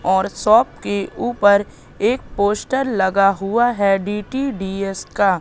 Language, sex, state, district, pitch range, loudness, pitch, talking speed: Hindi, female, Madhya Pradesh, Katni, 195-235 Hz, -18 LUFS, 200 Hz, 120 wpm